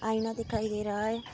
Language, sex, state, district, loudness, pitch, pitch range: Hindi, female, Bihar, Vaishali, -32 LUFS, 220 Hz, 215-225 Hz